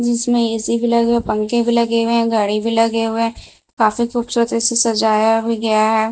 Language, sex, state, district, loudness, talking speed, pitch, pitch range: Hindi, female, Bihar, Patna, -16 LUFS, 205 wpm, 230 Hz, 225-235 Hz